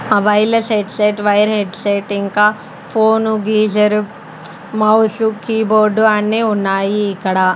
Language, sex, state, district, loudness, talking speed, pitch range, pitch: Telugu, female, Andhra Pradesh, Sri Satya Sai, -14 LUFS, 135 wpm, 205-220 Hz, 210 Hz